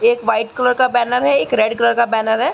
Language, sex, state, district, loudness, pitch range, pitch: Hindi, female, Uttar Pradesh, Gorakhpur, -16 LUFS, 225-250 Hz, 235 Hz